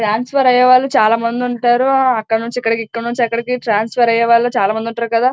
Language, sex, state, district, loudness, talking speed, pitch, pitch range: Telugu, female, Andhra Pradesh, Srikakulam, -14 LUFS, 205 wpm, 235 Hz, 230-250 Hz